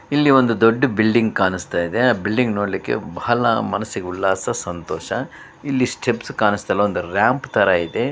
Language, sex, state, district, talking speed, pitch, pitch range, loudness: Kannada, male, Karnataka, Bellary, 155 wpm, 110 Hz, 95-125 Hz, -19 LUFS